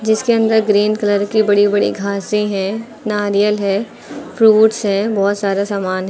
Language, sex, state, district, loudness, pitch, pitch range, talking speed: Hindi, female, Uttar Pradesh, Lucknow, -15 LUFS, 205 Hz, 200-220 Hz, 165 wpm